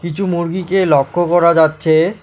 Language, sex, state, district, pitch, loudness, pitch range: Bengali, male, West Bengal, Alipurduar, 170 Hz, -14 LUFS, 160-180 Hz